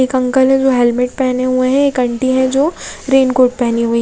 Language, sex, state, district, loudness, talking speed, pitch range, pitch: Hindi, female, Odisha, Khordha, -13 LUFS, 225 wpm, 250-265 Hz, 260 Hz